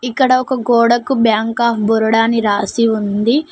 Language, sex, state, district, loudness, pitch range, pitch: Telugu, female, Telangana, Mahabubabad, -14 LUFS, 220-245 Hz, 230 Hz